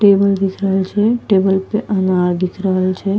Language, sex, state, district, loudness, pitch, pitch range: Angika, female, Bihar, Bhagalpur, -16 LUFS, 195 Hz, 185-200 Hz